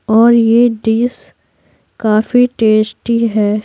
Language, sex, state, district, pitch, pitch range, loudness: Hindi, female, Bihar, Patna, 225 Hz, 215-235 Hz, -12 LUFS